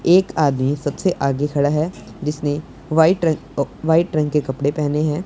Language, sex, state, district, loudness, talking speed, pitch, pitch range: Hindi, male, Punjab, Pathankot, -19 LUFS, 170 wpm, 150 Hz, 145-160 Hz